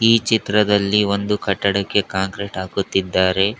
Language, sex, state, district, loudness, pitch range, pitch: Kannada, male, Karnataka, Koppal, -19 LUFS, 95-105 Hz, 100 Hz